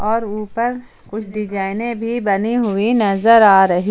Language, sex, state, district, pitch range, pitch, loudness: Hindi, female, Jharkhand, Ranchi, 200-230 Hz, 215 Hz, -16 LUFS